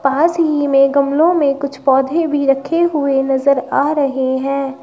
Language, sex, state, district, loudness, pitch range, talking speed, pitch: Hindi, female, Uttar Pradesh, Shamli, -15 LUFS, 275-300 Hz, 175 wpm, 280 Hz